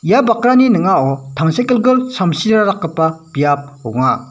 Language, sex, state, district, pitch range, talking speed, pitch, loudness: Garo, male, Meghalaya, West Garo Hills, 140-235 Hz, 110 wpm, 170 Hz, -14 LUFS